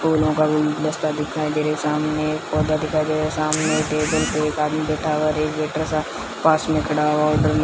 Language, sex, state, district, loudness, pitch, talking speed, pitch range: Hindi, female, Rajasthan, Bikaner, -21 LUFS, 155 Hz, 205 wpm, 150-155 Hz